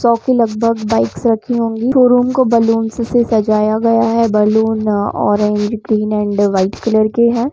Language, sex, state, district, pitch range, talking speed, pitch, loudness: Hindi, female, Jharkhand, Jamtara, 215-235 Hz, 175 wpm, 225 Hz, -14 LUFS